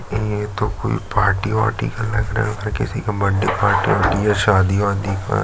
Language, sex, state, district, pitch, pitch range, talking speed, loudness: Hindi, male, Chhattisgarh, Jashpur, 105 Hz, 100-105 Hz, 200 wpm, -19 LUFS